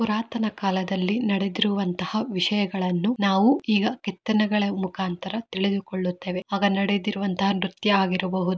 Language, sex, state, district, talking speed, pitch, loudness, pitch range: Kannada, female, Karnataka, Mysore, 90 wpm, 195 Hz, -24 LUFS, 190-210 Hz